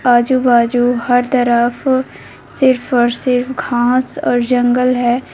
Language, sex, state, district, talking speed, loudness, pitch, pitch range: Hindi, female, Jharkhand, Garhwa, 125 wpm, -14 LUFS, 245 Hz, 240-255 Hz